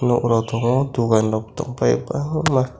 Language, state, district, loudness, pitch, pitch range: Kokborok, Tripura, West Tripura, -20 LUFS, 120 Hz, 110-130 Hz